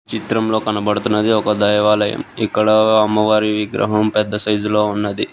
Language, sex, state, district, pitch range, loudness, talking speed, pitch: Telugu, male, Telangana, Hyderabad, 105-110 Hz, -16 LUFS, 115 wpm, 105 Hz